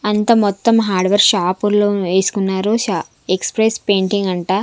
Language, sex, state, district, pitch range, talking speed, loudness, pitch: Telugu, female, Andhra Pradesh, Sri Satya Sai, 190-210 Hz, 130 wpm, -16 LUFS, 200 Hz